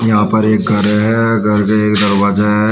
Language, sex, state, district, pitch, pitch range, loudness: Hindi, male, Uttar Pradesh, Shamli, 105 Hz, 105-110 Hz, -12 LUFS